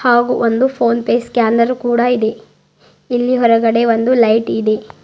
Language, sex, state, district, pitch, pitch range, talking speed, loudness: Kannada, female, Karnataka, Bidar, 235 Hz, 230-245 Hz, 145 wpm, -14 LUFS